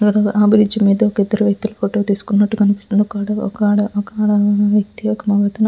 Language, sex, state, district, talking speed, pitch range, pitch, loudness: Telugu, female, Andhra Pradesh, Visakhapatnam, 160 wpm, 205-210 Hz, 210 Hz, -16 LUFS